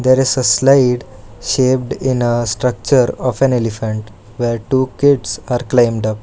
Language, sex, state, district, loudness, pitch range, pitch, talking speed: English, male, Karnataka, Bangalore, -15 LUFS, 110-130 Hz, 125 Hz, 165 wpm